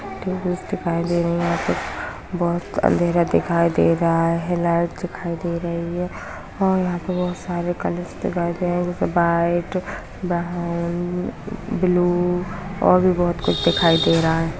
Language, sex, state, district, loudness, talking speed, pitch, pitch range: Hindi, female, Bihar, Muzaffarpur, -21 LUFS, 160 wpm, 175 Hz, 170-180 Hz